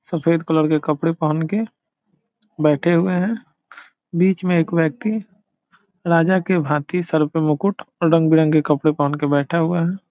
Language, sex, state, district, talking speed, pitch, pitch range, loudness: Hindi, male, Bihar, Saran, 160 wpm, 165 Hz, 155-185 Hz, -19 LUFS